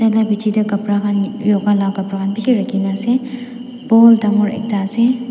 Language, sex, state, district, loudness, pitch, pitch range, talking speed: Nagamese, female, Nagaland, Dimapur, -15 LUFS, 215 Hz, 205-230 Hz, 180 wpm